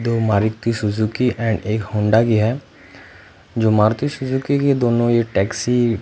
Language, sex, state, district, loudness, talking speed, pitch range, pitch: Hindi, male, Punjab, Fazilka, -18 LUFS, 160 wpm, 105-120 Hz, 110 Hz